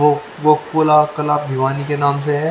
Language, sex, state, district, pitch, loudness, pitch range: Hindi, male, Haryana, Charkhi Dadri, 150 Hz, -16 LUFS, 145-150 Hz